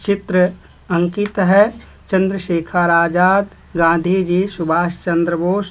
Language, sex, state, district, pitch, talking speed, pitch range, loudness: Hindi, male, Bihar, Kaimur, 180 Hz, 105 wpm, 170-195 Hz, -16 LUFS